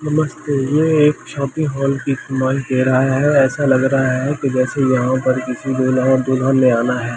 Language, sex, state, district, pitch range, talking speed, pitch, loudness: Hindi, male, Delhi, New Delhi, 130-140 Hz, 210 wpm, 135 Hz, -16 LUFS